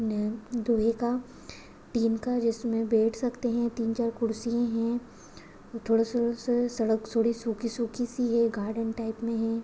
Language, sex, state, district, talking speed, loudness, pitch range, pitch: Hindi, female, Maharashtra, Dhule, 150 wpm, -28 LUFS, 225-240 Hz, 230 Hz